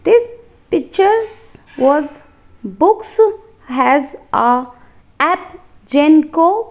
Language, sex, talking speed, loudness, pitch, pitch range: English, female, 70 wpm, -15 LUFS, 360 Hz, 290-430 Hz